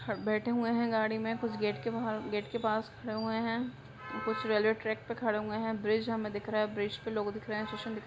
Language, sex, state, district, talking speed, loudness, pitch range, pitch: Hindi, female, Bihar, Madhepura, 245 wpm, -34 LUFS, 215-225 Hz, 220 Hz